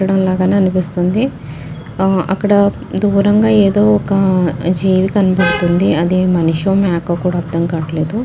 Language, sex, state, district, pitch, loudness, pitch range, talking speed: Telugu, female, Telangana, Nalgonda, 185 Hz, -14 LUFS, 175-195 Hz, 125 wpm